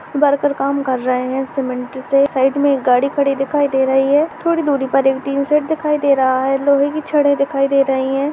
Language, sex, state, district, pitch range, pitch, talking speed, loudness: Hindi, female, Uttar Pradesh, Jyotiba Phule Nagar, 265-285 Hz, 275 Hz, 235 wpm, -16 LUFS